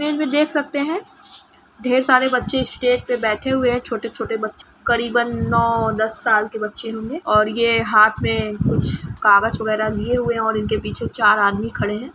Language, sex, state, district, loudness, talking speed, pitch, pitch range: Hindi, female, Bihar, Lakhisarai, -19 LUFS, 195 wpm, 230 Hz, 215-255 Hz